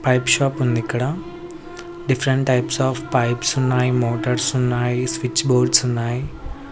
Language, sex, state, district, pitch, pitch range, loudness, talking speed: Telugu, male, Andhra Pradesh, Sri Satya Sai, 125 Hz, 120-140 Hz, -19 LUFS, 125 wpm